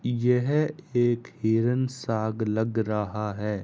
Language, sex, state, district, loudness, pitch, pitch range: Hindi, male, Bihar, Kishanganj, -26 LUFS, 115 Hz, 110-125 Hz